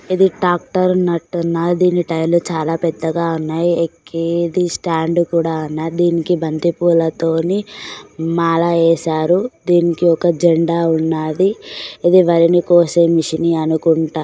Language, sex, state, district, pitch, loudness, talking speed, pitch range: Telugu, female, Telangana, Karimnagar, 170 Hz, -16 LUFS, 105 wpm, 165-175 Hz